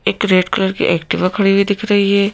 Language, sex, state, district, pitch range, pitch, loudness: Hindi, female, Madhya Pradesh, Bhopal, 190-205 Hz, 200 Hz, -15 LUFS